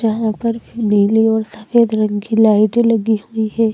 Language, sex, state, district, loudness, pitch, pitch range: Hindi, female, Madhya Pradesh, Bhopal, -15 LUFS, 220 Hz, 215-225 Hz